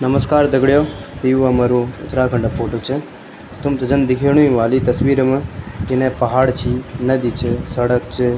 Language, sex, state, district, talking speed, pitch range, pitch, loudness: Garhwali, male, Uttarakhand, Tehri Garhwal, 170 wpm, 120-135 Hz, 130 Hz, -16 LUFS